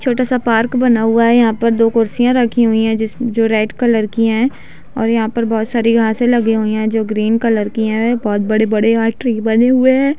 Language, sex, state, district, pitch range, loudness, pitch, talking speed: Hindi, female, Chhattisgarh, Bilaspur, 220-240 Hz, -14 LUFS, 230 Hz, 235 wpm